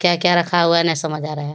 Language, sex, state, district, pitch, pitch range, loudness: Hindi, female, Bihar, Lakhisarai, 170 Hz, 155-175 Hz, -17 LUFS